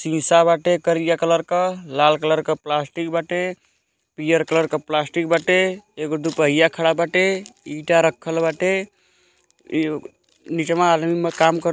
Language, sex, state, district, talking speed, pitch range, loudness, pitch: Bhojpuri, male, Uttar Pradesh, Gorakhpur, 140 wpm, 155-170 Hz, -19 LUFS, 165 Hz